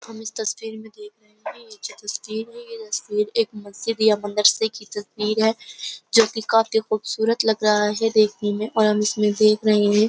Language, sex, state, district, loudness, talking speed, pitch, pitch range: Hindi, female, Uttar Pradesh, Jyotiba Phule Nagar, -21 LUFS, 200 wpm, 215 Hz, 210-225 Hz